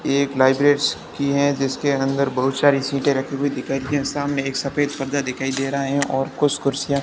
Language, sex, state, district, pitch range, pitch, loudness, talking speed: Hindi, male, Rajasthan, Barmer, 135-140 Hz, 140 Hz, -21 LUFS, 205 wpm